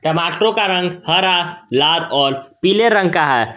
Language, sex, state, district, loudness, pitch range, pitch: Hindi, male, Jharkhand, Garhwa, -15 LUFS, 165-185 Hz, 175 Hz